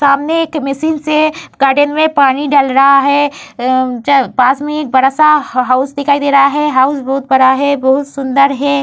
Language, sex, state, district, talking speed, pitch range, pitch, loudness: Hindi, female, Uttar Pradesh, Varanasi, 175 wpm, 265-290 Hz, 280 Hz, -11 LUFS